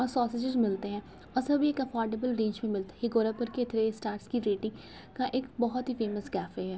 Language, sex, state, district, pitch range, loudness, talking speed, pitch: Hindi, female, Uttar Pradesh, Gorakhpur, 210-255 Hz, -32 LUFS, 205 wpm, 230 Hz